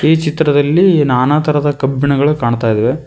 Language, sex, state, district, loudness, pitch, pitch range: Kannada, male, Karnataka, Koppal, -13 LUFS, 145 Hz, 135-155 Hz